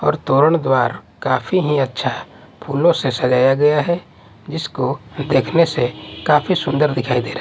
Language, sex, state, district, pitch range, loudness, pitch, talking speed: Hindi, male, Odisha, Nuapada, 125-160 Hz, -17 LUFS, 140 Hz, 160 wpm